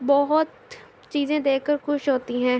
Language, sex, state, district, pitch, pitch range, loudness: Urdu, female, Andhra Pradesh, Anantapur, 290 Hz, 270-305 Hz, -23 LUFS